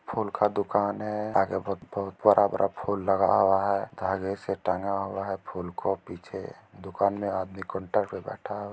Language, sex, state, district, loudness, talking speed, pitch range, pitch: Hindi, male, Bihar, Gopalganj, -28 LUFS, 180 wpm, 95-100 Hz, 100 Hz